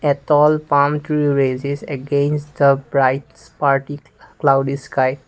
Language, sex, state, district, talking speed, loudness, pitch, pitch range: English, male, Assam, Kamrup Metropolitan, 115 wpm, -18 LUFS, 140 Hz, 135-145 Hz